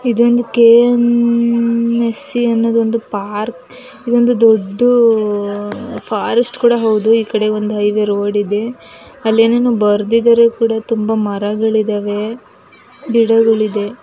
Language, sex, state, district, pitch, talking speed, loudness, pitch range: Kannada, female, Karnataka, Mysore, 230 Hz, 115 wpm, -14 LUFS, 210-240 Hz